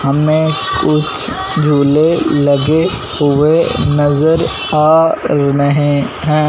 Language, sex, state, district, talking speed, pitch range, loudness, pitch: Hindi, male, Punjab, Fazilka, 85 wpm, 145-160 Hz, -12 LUFS, 150 Hz